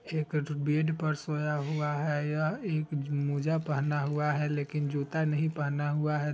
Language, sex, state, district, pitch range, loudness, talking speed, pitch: Hindi, male, Bihar, Vaishali, 145-155 Hz, -31 LUFS, 170 wpm, 150 Hz